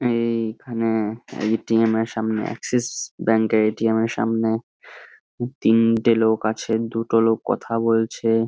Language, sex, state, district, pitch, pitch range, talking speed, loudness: Bengali, male, West Bengal, Jhargram, 115 Hz, 110-115 Hz, 150 wpm, -21 LUFS